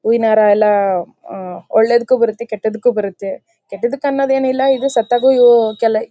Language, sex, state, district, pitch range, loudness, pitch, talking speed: Kannada, female, Karnataka, Bellary, 215-255 Hz, -14 LUFS, 230 Hz, 155 wpm